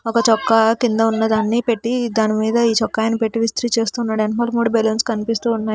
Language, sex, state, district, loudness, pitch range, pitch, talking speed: Telugu, female, Telangana, Hyderabad, -18 LUFS, 220-235 Hz, 225 Hz, 190 wpm